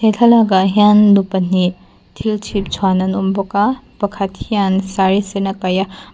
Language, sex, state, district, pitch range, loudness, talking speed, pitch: Mizo, female, Mizoram, Aizawl, 190-210 Hz, -15 LUFS, 195 wpm, 195 Hz